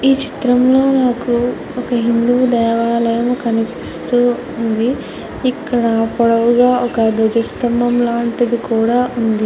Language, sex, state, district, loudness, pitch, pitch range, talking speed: Telugu, female, Andhra Pradesh, Chittoor, -15 LUFS, 240 Hz, 230-245 Hz, 90 wpm